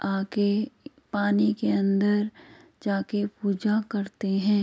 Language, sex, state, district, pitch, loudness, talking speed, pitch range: Hindi, female, Uttar Pradesh, Jyotiba Phule Nagar, 205 Hz, -26 LUFS, 115 wpm, 200-220 Hz